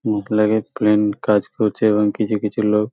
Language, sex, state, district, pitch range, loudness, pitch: Bengali, male, West Bengal, Purulia, 105-110 Hz, -18 LUFS, 105 Hz